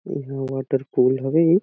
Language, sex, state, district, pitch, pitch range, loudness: Awadhi, male, Chhattisgarh, Balrampur, 135 Hz, 135-155 Hz, -22 LUFS